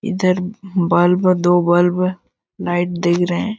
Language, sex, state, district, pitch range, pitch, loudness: Hindi, male, Jharkhand, Jamtara, 175-185 Hz, 180 Hz, -17 LUFS